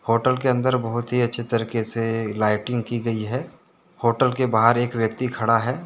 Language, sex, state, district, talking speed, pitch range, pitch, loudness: Hindi, male, Jharkhand, Deoghar, 195 wpm, 115-125 Hz, 120 Hz, -22 LUFS